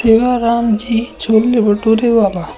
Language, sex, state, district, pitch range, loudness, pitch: Hindi, female, Uttar Pradesh, Shamli, 220-235 Hz, -13 LUFS, 225 Hz